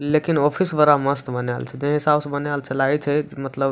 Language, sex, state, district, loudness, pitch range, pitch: Maithili, male, Bihar, Supaul, -21 LUFS, 135-150 Hz, 145 Hz